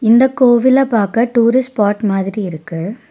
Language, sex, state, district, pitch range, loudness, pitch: Tamil, female, Tamil Nadu, Nilgiris, 200-250 Hz, -14 LUFS, 230 Hz